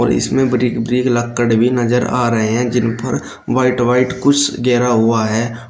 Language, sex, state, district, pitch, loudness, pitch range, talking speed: Hindi, male, Uttar Pradesh, Shamli, 120 Hz, -15 LUFS, 115-125 Hz, 190 wpm